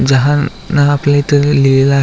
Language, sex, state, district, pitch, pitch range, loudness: Marathi, male, Maharashtra, Aurangabad, 145 Hz, 135-145 Hz, -12 LUFS